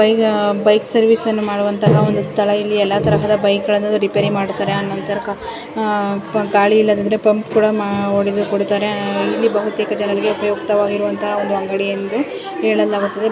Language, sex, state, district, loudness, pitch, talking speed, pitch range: Kannada, female, Karnataka, Chamarajanagar, -17 LUFS, 205 Hz, 105 wpm, 200-210 Hz